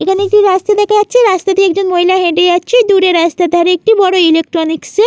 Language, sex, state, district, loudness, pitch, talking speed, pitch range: Bengali, female, West Bengal, Jalpaiguri, -10 LUFS, 375 Hz, 225 wpm, 350-415 Hz